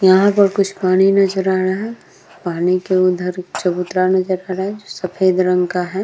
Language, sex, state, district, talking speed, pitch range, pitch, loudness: Hindi, female, Bihar, Vaishali, 210 wpm, 180-195 Hz, 185 Hz, -17 LUFS